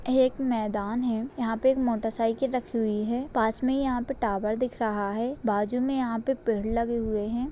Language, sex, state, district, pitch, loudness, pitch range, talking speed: Hindi, female, Bihar, Gopalganj, 235 Hz, -27 LUFS, 220-255 Hz, 215 wpm